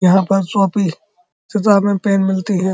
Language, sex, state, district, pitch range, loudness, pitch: Hindi, male, Uttar Pradesh, Muzaffarnagar, 190-205 Hz, -16 LUFS, 195 Hz